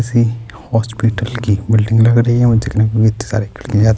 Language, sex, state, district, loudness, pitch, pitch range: Urdu, male, Bihar, Saharsa, -14 LUFS, 115 Hz, 110-115 Hz